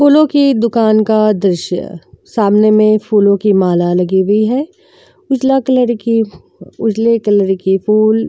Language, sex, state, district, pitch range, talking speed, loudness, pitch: Hindi, female, Uttar Pradesh, Jyotiba Phule Nagar, 200-235 Hz, 150 wpm, -12 LUFS, 215 Hz